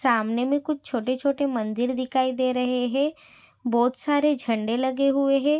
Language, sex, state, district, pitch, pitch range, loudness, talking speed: Hindi, female, Maharashtra, Pune, 260 Hz, 245-280 Hz, -24 LUFS, 170 wpm